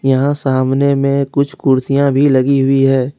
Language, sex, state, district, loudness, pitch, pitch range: Hindi, male, Jharkhand, Ranchi, -13 LUFS, 135 Hz, 135-140 Hz